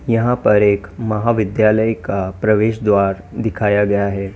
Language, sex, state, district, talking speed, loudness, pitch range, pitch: Hindi, male, Uttar Pradesh, Lalitpur, 135 wpm, -16 LUFS, 100-110 Hz, 105 Hz